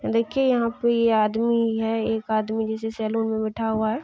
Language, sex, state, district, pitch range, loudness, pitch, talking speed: Maithili, female, Bihar, Kishanganj, 220-230 Hz, -23 LUFS, 225 Hz, 205 wpm